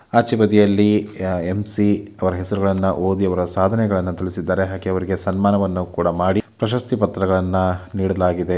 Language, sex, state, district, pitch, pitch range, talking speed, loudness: Kannada, male, Karnataka, Dakshina Kannada, 95 Hz, 90-105 Hz, 125 wpm, -19 LUFS